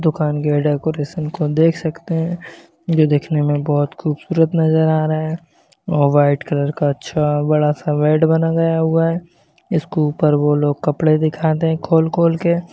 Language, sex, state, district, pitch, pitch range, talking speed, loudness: Hindi, male, Rajasthan, Churu, 155 Hz, 150-165 Hz, 170 wpm, -17 LUFS